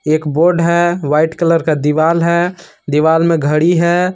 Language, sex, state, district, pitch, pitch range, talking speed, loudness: Hindi, male, Jharkhand, Palamu, 165 Hz, 155-170 Hz, 175 wpm, -13 LUFS